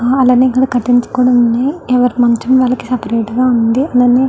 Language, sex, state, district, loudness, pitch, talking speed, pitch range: Telugu, female, Andhra Pradesh, Chittoor, -12 LUFS, 250 Hz, 85 wpm, 240-255 Hz